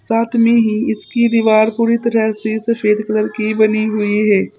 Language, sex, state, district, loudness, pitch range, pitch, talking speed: Hindi, female, Uttar Pradesh, Saharanpur, -15 LUFS, 215-230 Hz, 220 Hz, 185 wpm